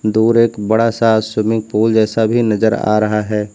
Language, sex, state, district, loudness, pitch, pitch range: Hindi, male, Uttar Pradesh, Lucknow, -14 LUFS, 110 Hz, 105-115 Hz